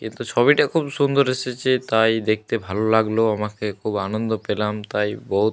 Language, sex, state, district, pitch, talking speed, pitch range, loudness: Bengali, male, Jharkhand, Jamtara, 110 Hz, 175 wpm, 105-125 Hz, -21 LUFS